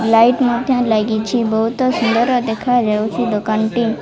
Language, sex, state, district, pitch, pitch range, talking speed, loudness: Odia, female, Odisha, Malkangiri, 230 Hz, 220-245 Hz, 135 wpm, -16 LUFS